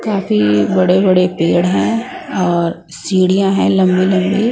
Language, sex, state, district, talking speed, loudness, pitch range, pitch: Hindi, female, Punjab, Pathankot, 105 wpm, -14 LUFS, 175-195 Hz, 185 Hz